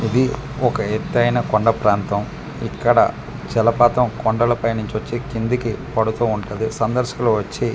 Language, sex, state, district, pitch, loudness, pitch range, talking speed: Telugu, male, Andhra Pradesh, Manyam, 115 Hz, -19 LUFS, 110-125 Hz, 130 wpm